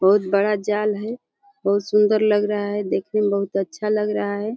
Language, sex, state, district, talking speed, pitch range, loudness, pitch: Hindi, female, Uttar Pradesh, Deoria, 210 wpm, 200-215 Hz, -21 LUFS, 210 Hz